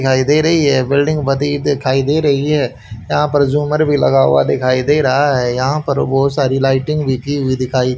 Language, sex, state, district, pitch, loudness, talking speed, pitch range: Hindi, male, Haryana, Jhajjar, 135 Hz, -14 LUFS, 225 wpm, 130-145 Hz